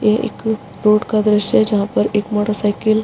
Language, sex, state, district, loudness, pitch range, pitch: Hindi, female, Uttarakhand, Uttarkashi, -16 LUFS, 210-215 Hz, 210 Hz